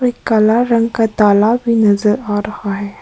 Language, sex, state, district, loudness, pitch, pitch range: Hindi, female, Arunachal Pradesh, Papum Pare, -14 LUFS, 215 Hz, 205-230 Hz